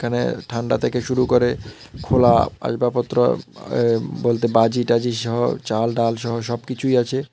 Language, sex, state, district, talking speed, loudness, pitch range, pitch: Bengali, male, Tripura, South Tripura, 130 wpm, -20 LUFS, 115-125 Hz, 120 Hz